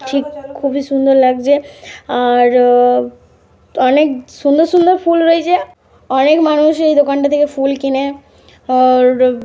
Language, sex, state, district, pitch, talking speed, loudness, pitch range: Bengali, female, Jharkhand, Jamtara, 275 Hz, 135 wpm, -12 LUFS, 255-300 Hz